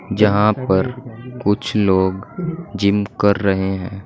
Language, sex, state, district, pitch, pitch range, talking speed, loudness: Hindi, male, Uttar Pradesh, Saharanpur, 105 Hz, 95-120 Hz, 120 wpm, -18 LUFS